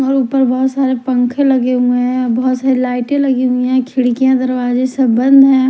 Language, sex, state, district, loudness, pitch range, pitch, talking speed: Hindi, female, Bihar, Katihar, -13 LUFS, 250-265 Hz, 255 Hz, 200 wpm